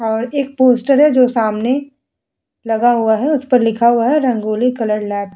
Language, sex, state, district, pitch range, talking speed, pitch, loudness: Hindi, female, Bihar, Vaishali, 225-260 Hz, 200 wpm, 240 Hz, -14 LUFS